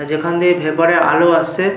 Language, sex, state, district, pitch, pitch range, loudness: Bengali, male, West Bengal, Paschim Medinipur, 170 Hz, 155-175 Hz, -14 LUFS